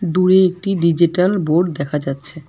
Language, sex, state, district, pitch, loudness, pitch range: Bengali, female, West Bengal, Alipurduar, 170 Hz, -16 LUFS, 155-185 Hz